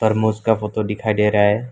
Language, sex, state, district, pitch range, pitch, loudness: Hindi, male, Assam, Kamrup Metropolitan, 105-110 Hz, 110 Hz, -19 LUFS